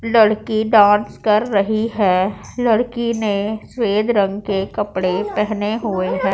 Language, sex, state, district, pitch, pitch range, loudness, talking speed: Hindi, female, Punjab, Pathankot, 210 Hz, 200-220 Hz, -18 LUFS, 135 wpm